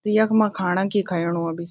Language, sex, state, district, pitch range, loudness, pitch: Garhwali, female, Uttarakhand, Tehri Garhwal, 170-210 Hz, -22 LUFS, 190 Hz